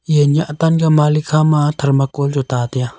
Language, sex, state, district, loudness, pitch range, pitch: Wancho, male, Arunachal Pradesh, Longding, -15 LUFS, 140-155 Hz, 150 Hz